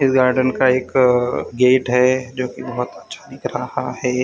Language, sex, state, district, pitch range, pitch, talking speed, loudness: Hindi, male, Maharashtra, Gondia, 125-130 Hz, 125 Hz, 185 wpm, -18 LUFS